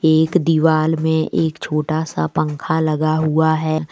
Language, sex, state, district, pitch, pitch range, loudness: Hindi, female, Jharkhand, Deoghar, 155 Hz, 155-160 Hz, -18 LUFS